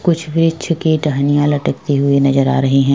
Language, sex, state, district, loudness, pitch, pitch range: Hindi, female, Uttar Pradesh, Jyotiba Phule Nagar, -15 LUFS, 145 Hz, 140-160 Hz